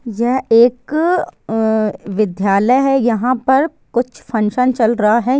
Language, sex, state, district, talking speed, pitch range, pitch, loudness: Hindi, female, Bihar, Sitamarhi, 120 wpm, 220-260 Hz, 240 Hz, -15 LUFS